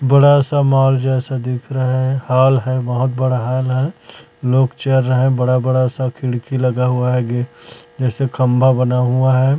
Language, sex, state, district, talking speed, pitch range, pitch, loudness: Hindi, female, Chhattisgarh, Raipur, 180 wpm, 125-130 Hz, 130 Hz, -16 LUFS